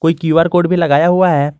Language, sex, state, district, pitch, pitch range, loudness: Hindi, male, Jharkhand, Garhwa, 165 Hz, 150-175 Hz, -12 LUFS